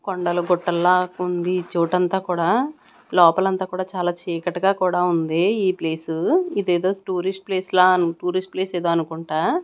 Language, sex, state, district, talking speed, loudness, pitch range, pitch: Telugu, female, Andhra Pradesh, Annamaya, 135 wpm, -21 LUFS, 175-190 Hz, 180 Hz